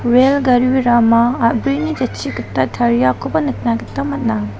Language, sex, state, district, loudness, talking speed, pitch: Garo, female, Meghalaya, South Garo Hills, -16 LUFS, 130 wpm, 235 Hz